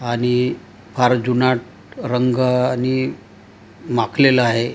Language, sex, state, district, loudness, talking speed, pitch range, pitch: Marathi, male, Maharashtra, Gondia, -18 LUFS, 75 wpm, 120-130 Hz, 125 Hz